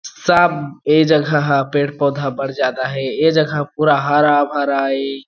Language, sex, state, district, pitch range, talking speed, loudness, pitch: Chhattisgarhi, male, Chhattisgarh, Jashpur, 135-150 Hz, 145 wpm, -16 LUFS, 145 Hz